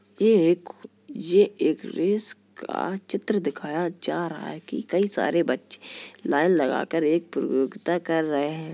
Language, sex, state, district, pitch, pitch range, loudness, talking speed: Hindi, male, Uttar Pradesh, Jalaun, 175 Hz, 160-215 Hz, -25 LUFS, 160 wpm